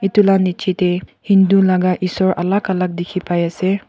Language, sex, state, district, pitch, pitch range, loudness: Nagamese, female, Nagaland, Kohima, 185 Hz, 180-195 Hz, -16 LUFS